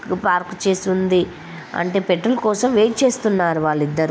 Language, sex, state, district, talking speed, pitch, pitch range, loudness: Telugu, female, Telangana, Karimnagar, 145 wpm, 185 Hz, 175-215 Hz, -19 LUFS